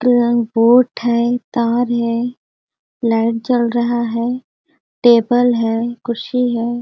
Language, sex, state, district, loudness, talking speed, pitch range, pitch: Hindi, female, Chhattisgarh, Sarguja, -16 LUFS, 115 wpm, 235-245 Hz, 240 Hz